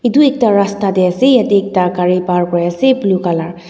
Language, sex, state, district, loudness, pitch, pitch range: Nagamese, female, Nagaland, Dimapur, -13 LUFS, 190 Hz, 180-220 Hz